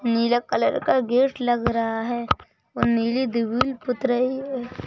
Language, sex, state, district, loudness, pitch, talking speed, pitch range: Hindi, male, Madhya Pradesh, Bhopal, -23 LUFS, 240 Hz, 170 wpm, 235-255 Hz